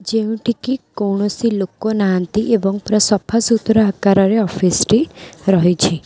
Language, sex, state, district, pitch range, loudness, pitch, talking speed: Odia, female, Odisha, Khordha, 195-220 Hz, -16 LUFS, 210 Hz, 140 wpm